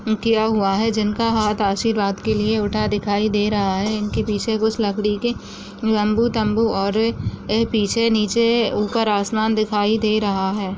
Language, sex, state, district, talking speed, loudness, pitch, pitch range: Hindi, female, Goa, North and South Goa, 165 wpm, -20 LUFS, 215 Hz, 205-220 Hz